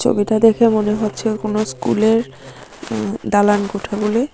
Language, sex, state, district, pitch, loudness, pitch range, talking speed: Bengali, female, Tripura, Unakoti, 215 Hz, -17 LUFS, 210-225 Hz, 125 wpm